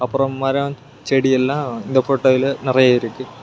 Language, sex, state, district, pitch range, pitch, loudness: Tamil, male, Tamil Nadu, Kanyakumari, 130-135 Hz, 130 Hz, -17 LUFS